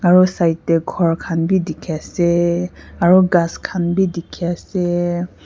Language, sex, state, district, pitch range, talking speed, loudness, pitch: Nagamese, female, Nagaland, Kohima, 170-180 Hz, 155 wpm, -17 LUFS, 175 Hz